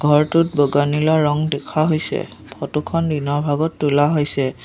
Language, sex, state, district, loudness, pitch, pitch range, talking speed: Assamese, female, Assam, Sonitpur, -18 LUFS, 150 Hz, 145-155 Hz, 155 wpm